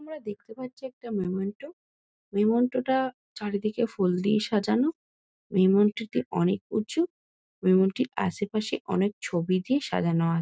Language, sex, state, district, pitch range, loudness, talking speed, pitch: Bengali, female, West Bengal, Kolkata, 190-255 Hz, -27 LUFS, 130 wpm, 210 Hz